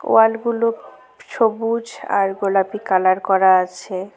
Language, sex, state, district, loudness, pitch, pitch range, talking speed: Bengali, female, West Bengal, Cooch Behar, -18 LUFS, 200 Hz, 185-225 Hz, 115 wpm